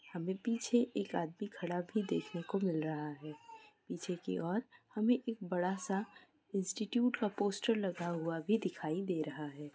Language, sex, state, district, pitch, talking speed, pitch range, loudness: Hindi, female, Bihar, Gaya, 190 Hz, 170 wpm, 170-220 Hz, -37 LUFS